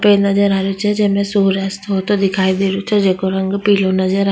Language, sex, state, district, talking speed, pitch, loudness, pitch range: Rajasthani, female, Rajasthan, Nagaur, 265 wpm, 195 Hz, -15 LUFS, 190-200 Hz